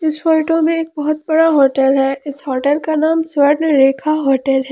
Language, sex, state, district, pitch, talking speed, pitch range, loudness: Hindi, female, Jharkhand, Palamu, 295 Hz, 205 wpm, 270-315 Hz, -15 LUFS